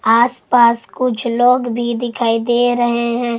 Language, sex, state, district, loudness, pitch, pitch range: Hindi, female, Jharkhand, Garhwa, -15 LUFS, 240 Hz, 235-245 Hz